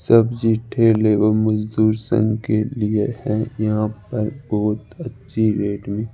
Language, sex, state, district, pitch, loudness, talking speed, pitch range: Hindi, male, Rajasthan, Jaipur, 110 Hz, -20 LUFS, 145 wpm, 105-115 Hz